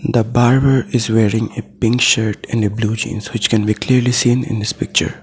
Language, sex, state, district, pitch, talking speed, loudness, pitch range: English, male, Assam, Sonitpur, 115 Hz, 205 wpm, -16 LUFS, 110-125 Hz